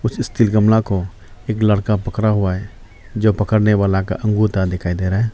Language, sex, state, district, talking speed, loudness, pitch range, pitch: Hindi, male, Arunachal Pradesh, Lower Dibang Valley, 200 wpm, -17 LUFS, 95-110 Hz, 105 Hz